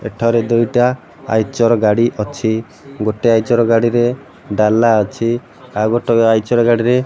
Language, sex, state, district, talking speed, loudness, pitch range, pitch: Odia, male, Odisha, Malkangiri, 125 wpm, -15 LUFS, 110-120 Hz, 115 Hz